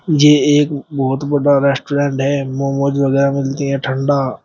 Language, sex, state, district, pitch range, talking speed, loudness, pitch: Hindi, male, Uttar Pradesh, Shamli, 135-145 Hz, 150 wpm, -15 LUFS, 140 Hz